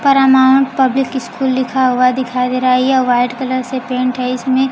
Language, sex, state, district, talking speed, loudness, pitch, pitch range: Hindi, female, Bihar, Kaimur, 205 wpm, -14 LUFS, 260 Hz, 250-265 Hz